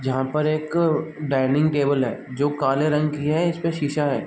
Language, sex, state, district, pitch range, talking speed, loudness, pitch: Hindi, male, Chhattisgarh, Bilaspur, 135-155 Hz, 195 wpm, -22 LUFS, 150 Hz